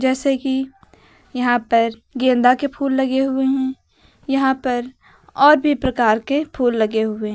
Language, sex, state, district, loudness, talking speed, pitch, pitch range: Hindi, female, Uttar Pradesh, Lucknow, -18 LUFS, 165 wpm, 260 Hz, 245-270 Hz